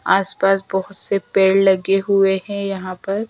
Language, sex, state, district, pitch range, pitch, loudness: Hindi, female, Madhya Pradesh, Dhar, 190-200 Hz, 195 Hz, -18 LUFS